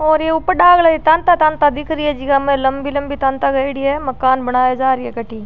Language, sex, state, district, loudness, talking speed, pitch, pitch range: Rajasthani, female, Rajasthan, Churu, -15 LUFS, 255 wpm, 280 Hz, 260-310 Hz